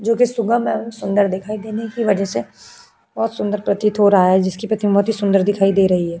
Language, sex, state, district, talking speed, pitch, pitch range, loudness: Hindi, female, Uttar Pradesh, Jyotiba Phule Nagar, 225 wpm, 205 Hz, 195-220 Hz, -17 LUFS